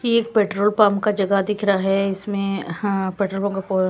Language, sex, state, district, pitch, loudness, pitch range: Hindi, female, Punjab, Kapurthala, 200 Hz, -20 LUFS, 195-210 Hz